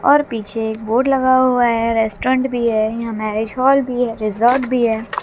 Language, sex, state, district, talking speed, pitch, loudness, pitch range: Hindi, female, Haryana, Jhajjar, 205 wpm, 235 Hz, -17 LUFS, 220-255 Hz